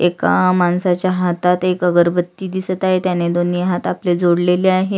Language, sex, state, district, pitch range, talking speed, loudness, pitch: Marathi, female, Maharashtra, Sindhudurg, 175-185 Hz, 145 wpm, -16 LUFS, 180 Hz